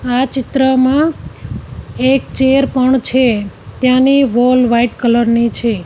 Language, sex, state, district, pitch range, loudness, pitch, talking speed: Gujarati, female, Gujarat, Gandhinagar, 235-265 Hz, -13 LUFS, 255 Hz, 125 wpm